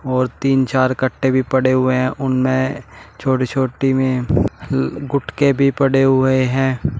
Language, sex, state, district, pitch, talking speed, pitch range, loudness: Hindi, male, Uttar Pradesh, Shamli, 130 Hz, 145 wpm, 130-135 Hz, -17 LUFS